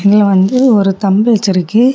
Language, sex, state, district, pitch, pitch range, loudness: Tamil, female, Tamil Nadu, Kanyakumari, 205 Hz, 195-230 Hz, -11 LUFS